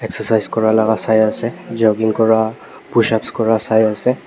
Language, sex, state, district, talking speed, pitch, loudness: Nagamese, male, Nagaland, Dimapur, 155 wpm, 110 Hz, -16 LUFS